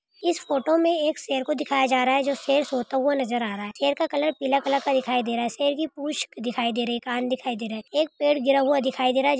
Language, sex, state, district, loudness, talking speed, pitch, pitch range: Hindi, female, Bihar, Jamui, -24 LUFS, 300 wpm, 275 Hz, 250-290 Hz